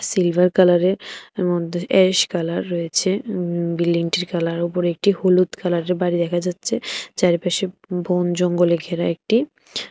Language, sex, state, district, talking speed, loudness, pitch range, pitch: Bengali, female, Tripura, West Tripura, 135 wpm, -20 LUFS, 170-185 Hz, 180 Hz